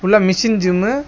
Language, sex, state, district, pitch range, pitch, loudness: Tamil, male, Tamil Nadu, Kanyakumari, 185-225 Hz, 210 Hz, -15 LUFS